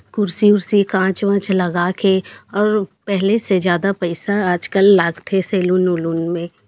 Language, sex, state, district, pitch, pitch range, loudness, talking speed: Chhattisgarhi, female, Chhattisgarh, Raigarh, 190 Hz, 175-200 Hz, -17 LUFS, 145 wpm